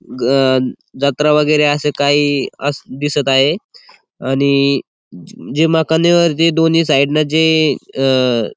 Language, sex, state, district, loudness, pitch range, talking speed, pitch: Marathi, male, Maharashtra, Aurangabad, -14 LUFS, 135-155 Hz, 125 wpm, 145 Hz